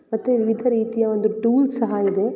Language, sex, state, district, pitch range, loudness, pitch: Kannada, female, Karnataka, Raichur, 215-245 Hz, -20 LUFS, 225 Hz